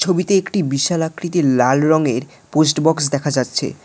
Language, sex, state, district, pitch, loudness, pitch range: Bengali, male, West Bengal, Alipurduar, 155 Hz, -17 LUFS, 140-175 Hz